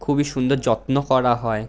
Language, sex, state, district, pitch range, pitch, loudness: Bengali, male, West Bengal, Jhargram, 120-140 Hz, 130 Hz, -20 LUFS